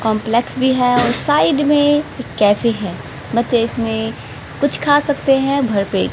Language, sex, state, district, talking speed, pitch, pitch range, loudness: Hindi, female, Haryana, Rohtak, 165 wpm, 240 Hz, 220-285 Hz, -16 LUFS